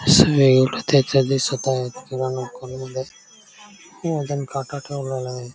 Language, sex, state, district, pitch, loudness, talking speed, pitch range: Marathi, male, Maharashtra, Dhule, 135 Hz, -21 LUFS, 95 wpm, 130-140 Hz